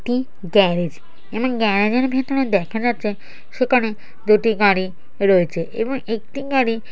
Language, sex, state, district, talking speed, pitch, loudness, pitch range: Bengali, male, West Bengal, Dakshin Dinajpur, 150 wpm, 220 Hz, -19 LUFS, 200-250 Hz